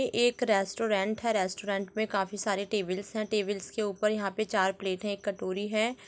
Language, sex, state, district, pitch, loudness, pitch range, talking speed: Hindi, female, Uttar Pradesh, Etah, 205 Hz, -30 LUFS, 195-215 Hz, 195 wpm